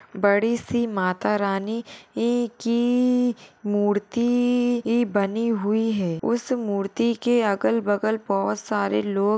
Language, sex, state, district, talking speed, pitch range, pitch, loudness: Hindi, female, Maharashtra, Sindhudurg, 110 wpm, 205-235 Hz, 225 Hz, -23 LUFS